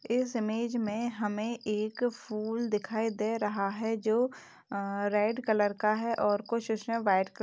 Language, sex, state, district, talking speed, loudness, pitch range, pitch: Hindi, female, Uttar Pradesh, Etah, 175 wpm, -31 LUFS, 210-230 Hz, 220 Hz